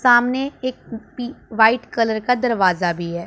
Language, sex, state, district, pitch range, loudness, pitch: Hindi, female, Punjab, Pathankot, 220-250 Hz, -19 LUFS, 235 Hz